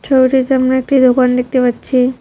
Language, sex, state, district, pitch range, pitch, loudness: Bengali, female, West Bengal, Cooch Behar, 250-265 Hz, 255 Hz, -13 LUFS